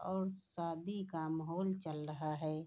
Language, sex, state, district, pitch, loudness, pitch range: Hindi, female, Bihar, Saharsa, 165 Hz, -41 LUFS, 155-190 Hz